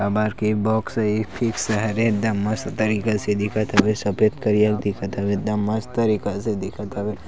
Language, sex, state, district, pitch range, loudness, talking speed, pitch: Chhattisgarhi, male, Chhattisgarh, Sarguja, 105-110 Hz, -22 LUFS, 190 wpm, 105 Hz